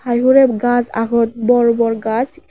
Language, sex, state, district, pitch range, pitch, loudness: Chakma, female, Tripura, West Tripura, 230-245 Hz, 240 Hz, -15 LUFS